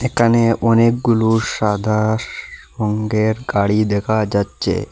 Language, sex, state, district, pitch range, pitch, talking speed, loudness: Bengali, male, Assam, Hailakandi, 105-115 Hz, 110 Hz, 85 wpm, -17 LUFS